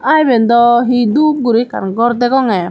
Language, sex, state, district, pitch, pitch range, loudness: Chakma, female, Tripura, Dhalai, 240 Hz, 230-255 Hz, -12 LUFS